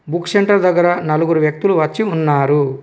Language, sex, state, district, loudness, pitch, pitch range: Telugu, male, Telangana, Komaram Bheem, -15 LUFS, 165 Hz, 150-180 Hz